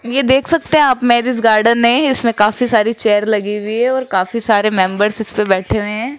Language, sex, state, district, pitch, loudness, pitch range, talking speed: Hindi, female, Rajasthan, Jaipur, 230 Hz, -13 LUFS, 210-250 Hz, 225 wpm